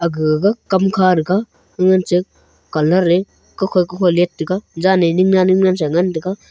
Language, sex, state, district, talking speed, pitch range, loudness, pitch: Wancho, male, Arunachal Pradesh, Longding, 195 wpm, 175-190 Hz, -16 LUFS, 185 Hz